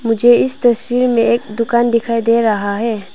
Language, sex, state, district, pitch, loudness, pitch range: Hindi, female, Arunachal Pradesh, Papum Pare, 230 Hz, -14 LUFS, 230-240 Hz